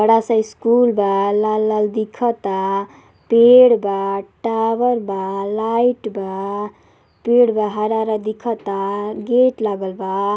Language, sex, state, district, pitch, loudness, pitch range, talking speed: Bhojpuri, female, Uttar Pradesh, Deoria, 215 Hz, -17 LUFS, 200-230 Hz, 115 wpm